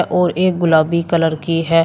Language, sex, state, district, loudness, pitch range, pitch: Hindi, male, Uttar Pradesh, Shamli, -16 LUFS, 165-175 Hz, 170 Hz